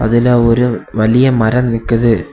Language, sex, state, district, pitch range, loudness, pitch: Tamil, male, Tamil Nadu, Kanyakumari, 115-120 Hz, -12 LUFS, 115 Hz